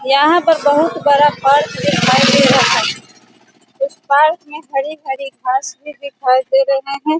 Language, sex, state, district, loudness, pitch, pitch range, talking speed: Hindi, female, Bihar, Sitamarhi, -14 LUFS, 275 Hz, 265-295 Hz, 175 wpm